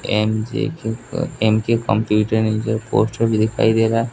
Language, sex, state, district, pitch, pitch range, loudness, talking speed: Hindi, male, Bihar, West Champaran, 110 Hz, 110-115 Hz, -19 LUFS, 100 wpm